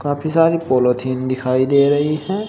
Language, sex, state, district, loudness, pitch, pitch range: Hindi, male, Uttar Pradesh, Shamli, -17 LUFS, 140 Hz, 130-155 Hz